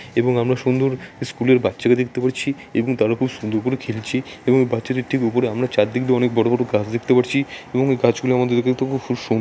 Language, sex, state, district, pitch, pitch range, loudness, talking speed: Bengali, male, West Bengal, Jalpaiguri, 125 Hz, 120-130 Hz, -20 LUFS, 215 wpm